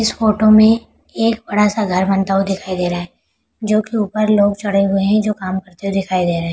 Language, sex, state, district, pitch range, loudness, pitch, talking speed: Hindi, female, Bihar, Araria, 190-215 Hz, -16 LUFS, 200 Hz, 255 wpm